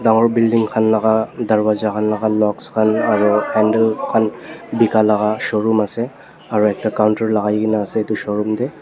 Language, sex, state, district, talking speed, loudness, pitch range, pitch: Nagamese, male, Nagaland, Dimapur, 90 wpm, -17 LUFS, 105-110 Hz, 110 Hz